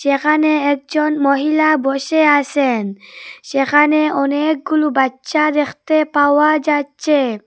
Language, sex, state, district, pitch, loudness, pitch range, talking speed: Bengali, female, Assam, Hailakandi, 295 Hz, -15 LUFS, 275-305 Hz, 90 wpm